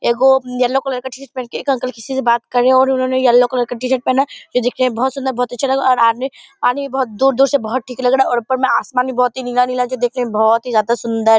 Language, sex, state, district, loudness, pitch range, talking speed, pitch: Hindi, female, Bihar, Purnia, -16 LUFS, 245-265 Hz, 280 wpm, 255 Hz